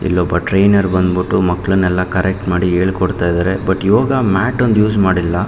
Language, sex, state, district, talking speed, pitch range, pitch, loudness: Kannada, male, Karnataka, Mysore, 155 wpm, 90-100 Hz, 95 Hz, -14 LUFS